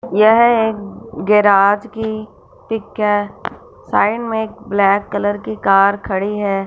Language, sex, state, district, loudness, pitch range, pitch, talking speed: Hindi, female, Punjab, Fazilka, -16 LUFS, 200-220 Hz, 210 Hz, 125 wpm